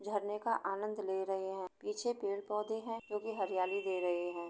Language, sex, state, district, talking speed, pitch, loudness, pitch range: Hindi, female, Uttar Pradesh, Jalaun, 215 wpm, 200 Hz, -38 LUFS, 190-210 Hz